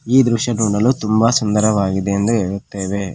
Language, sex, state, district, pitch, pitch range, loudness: Kannada, male, Karnataka, Koppal, 110 Hz, 100-115 Hz, -17 LUFS